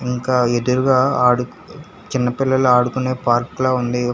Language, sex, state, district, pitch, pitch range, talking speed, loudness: Telugu, male, Telangana, Hyderabad, 125 Hz, 125-130 Hz, 130 wpm, -17 LUFS